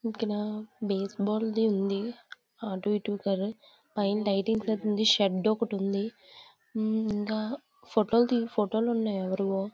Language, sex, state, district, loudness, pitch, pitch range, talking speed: Telugu, female, Andhra Pradesh, Visakhapatnam, -29 LUFS, 215 Hz, 200-225 Hz, 105 wpm